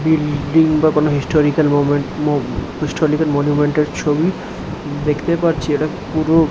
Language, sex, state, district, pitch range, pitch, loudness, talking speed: Bengali, male, West Bengal, Dakshin Dinajpur, 145-155 Hz, 150 Hz, -17 LUFS, 155 wpm